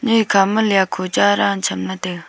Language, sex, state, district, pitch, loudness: Wancho, female, Arunachal Pradesh, Longding, 185 Hz, -17 LUFS